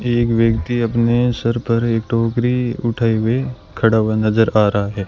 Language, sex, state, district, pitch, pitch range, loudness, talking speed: Hindi, male, Rajasthan, Bikaner, 115 Hz, 110-120 Hz, -17 LUFS, 175 wpm